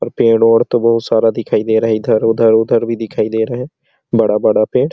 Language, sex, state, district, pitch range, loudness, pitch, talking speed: Hindi, male, Chhattisgarh, Sarguja, 110-120 Hz, -14 LUFS, 115 Hz, 245 wpm